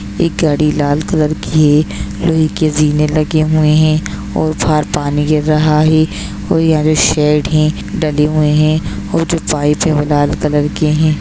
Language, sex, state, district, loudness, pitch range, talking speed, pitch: Hindi, female, Bihar, Saran, -13 LUFS, 150-155 Hz, 185 wpm, 155 Hz